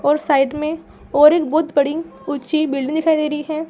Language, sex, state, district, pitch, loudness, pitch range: Hindi, female, Bihar, Saran, 305 Hz, -18 LUFS, 285-315 Hz